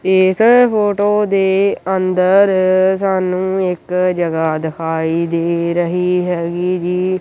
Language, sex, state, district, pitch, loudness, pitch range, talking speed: Punjabi, male, Punjab, Kapurthala, 185 Hz, -15 LUFS, 175-190 Hz, 100 wpm